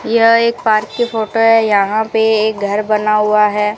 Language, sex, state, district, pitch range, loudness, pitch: Hindi, female, Rajasthan, Bikaner, 210-225 Hz, -13 LUFS, 215 Hz